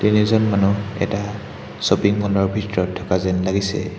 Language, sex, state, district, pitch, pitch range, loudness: Assamese, male, Assam, Hailakandi, 100 Hz, 95-105 Hz, -20 LUFS